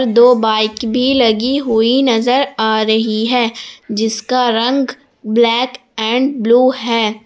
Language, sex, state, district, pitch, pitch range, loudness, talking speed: Hindi, female, Jharkhand, Palamu, 235 Hz, 225-255 Hz, -14 LUFS, 125 wpm